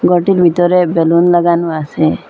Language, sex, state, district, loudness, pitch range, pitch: Bengali, female, Assam, Hailakandi, -12 LUFS, 170-175 Hz, 175 Hz